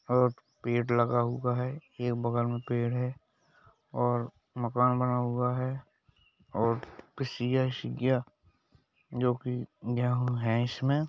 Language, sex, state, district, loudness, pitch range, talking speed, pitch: Hindi, male, Uttar Pradesh, Hamirpur, -31 LUFS, 120-125 Hz, 125 wpm, 125 Hz